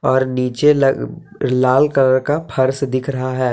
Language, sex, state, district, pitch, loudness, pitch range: Hindi, male, Jharkhand, Deoghar, 130 Hz, -16 LUFS, 130-140 Hz